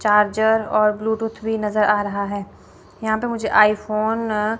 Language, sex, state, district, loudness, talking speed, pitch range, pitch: Hindi, female, Chandigarh, Chandigarh, -20 LUFS, 170 wpm, 210-220 Hz, 215 Hz